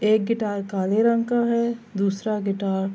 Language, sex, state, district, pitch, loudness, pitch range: Urdu, female, Andhra Pradesh, Anantapur, 215 Hz, -23 LUFS, 195-230 Hz